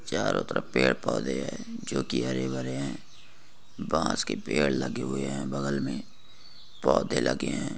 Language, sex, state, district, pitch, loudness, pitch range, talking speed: Hindi, male, Jharkhand, Jamtara, 70 Hz, -29 LUFS, 65-70 Hz, 160 wpm